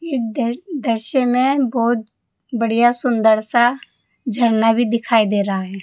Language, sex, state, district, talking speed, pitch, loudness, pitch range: Hindi, female, Rajasthan, Jaipur, 135 wpm, 235 Hz, -17 LUFS, 225-250 Hz